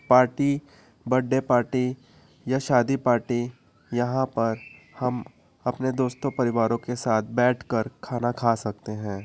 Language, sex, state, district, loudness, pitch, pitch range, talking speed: Hindi, male, Chhattisgarh, Korba, -25 LUFS, 125 Hz, 115-130 Hz, 125 wpm